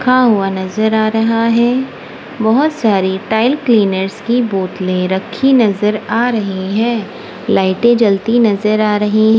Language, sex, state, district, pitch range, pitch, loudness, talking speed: Hindi, female, Punjab, Kapurthala, 195-235 Hz, 220 Hz, -14 LUFS, 140 wpm